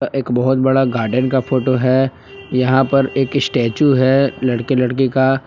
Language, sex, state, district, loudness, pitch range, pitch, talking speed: Hindi, male, Jharkhand, Palamu, -16 LUFS, 125-135 Hz, 130 Hz, 165 wpm